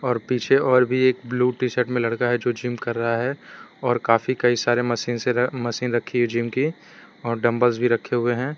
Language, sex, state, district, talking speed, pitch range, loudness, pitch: Hindi, male, Gujarat, Valsad, 230 wpm, 120-125 Hz, -22 LUFS, 120 Hz